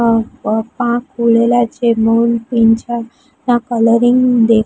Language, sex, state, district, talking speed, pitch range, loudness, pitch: Gujarati, female, Gujarat, Gandhinagar, 105 wpm, 230-240 Hz, -14 LUFS, 235 Hz